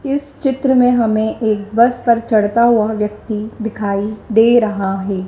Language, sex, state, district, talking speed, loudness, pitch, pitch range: Hindi, female, Madhya Pradesh, Dhar, 125 wpm, -15 LUFS, 220 Hz, 210-235 Hz